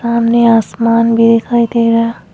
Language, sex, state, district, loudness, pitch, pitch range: Hindi, female, Goa, North and South Goa, -11 LUFS, 230 Hz, 230-235 Hz